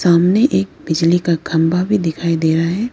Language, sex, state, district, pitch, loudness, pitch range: Hindi, female, Arunachal Pradesh, Lower Dibang Valley, 170 Hz, -16 LUFS, 160-180 Hz